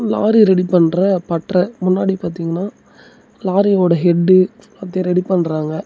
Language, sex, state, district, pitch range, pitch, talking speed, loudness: Tamil, male, Tamil Nadu, Namakkal, 175-200 Hz, 185 Hz, 115 wpm, -15 LUFS